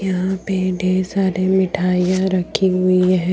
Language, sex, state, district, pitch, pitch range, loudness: Hindi, female, Jharkhand, Deoghar, 185 Hz, 185-190 Hz, -18 LUFS